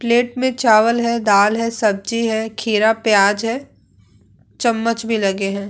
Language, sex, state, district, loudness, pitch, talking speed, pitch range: Hindi, female, Bihar, Vaishali, -17 LUFS, 220 Hz, 170 wpm, 200-230 Hz